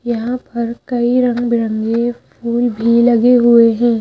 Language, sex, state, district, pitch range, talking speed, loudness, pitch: Hindi, female, Madhya Pradesh, Bhopal, 235-240 Hz, 150 wpm, -14 LUFS, 235 Hz